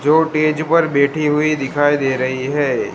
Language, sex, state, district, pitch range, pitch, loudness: Hindi, male, Gujarat, Gandhinagar, 140-155 Hz, 145 Hz, -16 LUFS